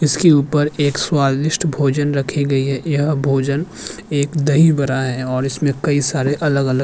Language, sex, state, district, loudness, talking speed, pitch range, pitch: Hindi, male, Uttarakhand, Tehri Garhwal, -17 LUFS, 165 wpm, 135-150 Hz, 145 Hz